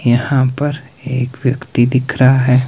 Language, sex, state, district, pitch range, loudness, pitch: Hindi, male, Himachal Pradesh, Shimla, 125-135 Hz, -15 LUFS, 130 Hz